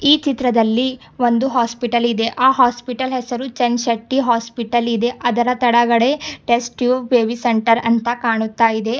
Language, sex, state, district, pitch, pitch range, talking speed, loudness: Kannada, female, Karnataka, Bidar, 240 Hz, 235-255 Hz, 135 wpm, -17 LUFS